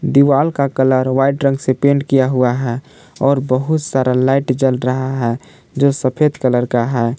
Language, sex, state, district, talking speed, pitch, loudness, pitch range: Hindi, male, Jharkhand, Palamu, 185 wpm, 130 Hz, -15 LUFS, 130-140 Hz